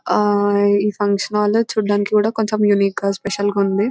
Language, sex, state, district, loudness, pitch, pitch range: Telugu, female, Telangana, Nalgonda, -17 LUFS, 205 Hz, 200-210 Hz